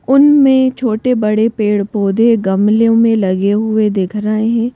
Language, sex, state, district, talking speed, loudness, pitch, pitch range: Hindi, female, Madhya Pradesh, Bhopal, 125 wpm, -13 LUFS, 220 Hz, 210-235 Hz